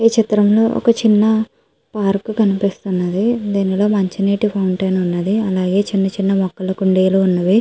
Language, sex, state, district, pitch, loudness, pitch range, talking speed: Telugu, female, Andhra Pradesh, Chittoor, 200 Hz, -16 LUFS, 190-215 Hz, 140 wpm